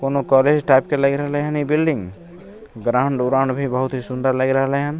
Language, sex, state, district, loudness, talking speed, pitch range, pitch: Maithili, male, Bihar, Begusarai, -19 LUFS, 215 wpm, 130-150 Hz, 140 Hz